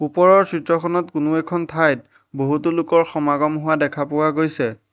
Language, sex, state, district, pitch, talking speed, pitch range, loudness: Assamese, male, Assam, Hailakandi, 160 Hz, 145 wpm, 150-170 Hz, -19 LUFS